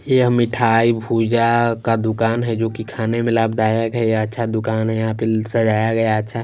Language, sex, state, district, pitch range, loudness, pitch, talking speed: Hindi, male, Punjab, Kapurthala, 110-115 Hz, -18 LUFS, 115 Hz, 205 wpm